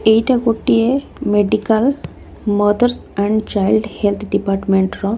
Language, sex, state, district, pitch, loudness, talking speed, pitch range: Odia, female, Odisha, Khordha, 215 Hz, -16 LUFS, 105 wpm, 205-225 Hz